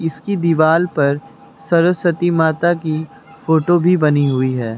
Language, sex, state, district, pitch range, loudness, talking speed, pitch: Hindi, male, Uttar Pradesh, Lucknow, 150-175 Hz, -16 LUFS, 140 wpm, 160 Hz